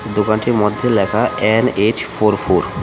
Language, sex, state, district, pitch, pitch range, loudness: Bengali, male, Tripura, West Tripura, 105 Hz, 105-115 Hz, -16 LUFS